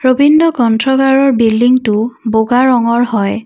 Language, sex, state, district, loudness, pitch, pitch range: Assamese, female, Assam, Kamrup Metropolitan, -11 LUFS, 245 Hz, 225-265 Hz